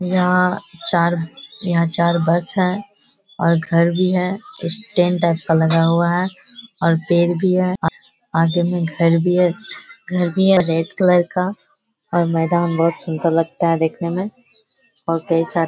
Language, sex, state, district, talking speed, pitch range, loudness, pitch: Hindi, female, Bihar, Kishanganj, 170 wpm, 165-190 Hz, -18 LUFS, 175 Hz